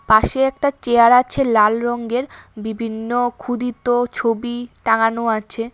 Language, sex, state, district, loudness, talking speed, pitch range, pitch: Bengali, female, Tripura, West Tripura, -18 LUFS, 115 wpm, 225-245 Hz, 240 Hz